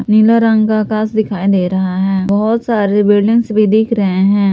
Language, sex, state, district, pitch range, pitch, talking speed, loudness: Hindi, female, Jharkhand, Palamu, 200-220 Hz, 215 Hz, 200 wpm, -13 LUFS